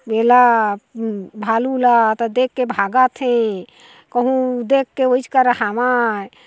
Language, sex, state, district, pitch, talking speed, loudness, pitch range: Chhattisgarhi, female, Chhattisgarh, Korba, 245 Hz, 130 wpm, -17 LUFS, 225-255 Hz